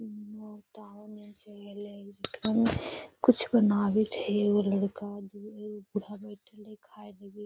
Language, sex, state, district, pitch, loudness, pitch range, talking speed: Magahi, female, Bihar, Gaya, 210 Hz, -28 LUFS, 205-215 Hz, 95 wpm